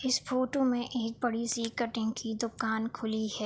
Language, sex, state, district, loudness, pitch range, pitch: Hindi, female, Uttar Pradesh, Budaun, -32 LUFS, 220-250 Hz, 230 Hz